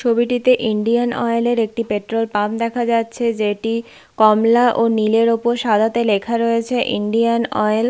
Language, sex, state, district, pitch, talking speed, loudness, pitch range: Bengali, female, West Bengal, Paschim Medinipur, 230 Hz, 150 wpm, -17 LUFS, 220-235 Hz